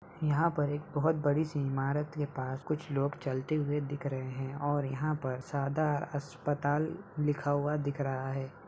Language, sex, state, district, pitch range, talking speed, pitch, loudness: Hindi, male, Uttar Pradesh, Ghazipur, 135-150 Hz, 180 wpm, 145 Hz, -33 LUFS